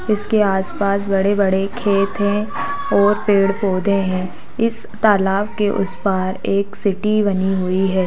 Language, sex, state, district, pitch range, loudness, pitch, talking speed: Hindi, female, Bihar, Sitamarhi, 195-210 Hz, -18 LUFS, 200 Hz, 135 wpm